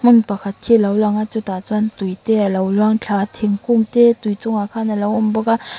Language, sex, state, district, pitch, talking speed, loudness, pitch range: Mizo, female, Mizoram, Aizawl, 215 Hz, 250 wpm, -17 LUFS, 200-225 Hz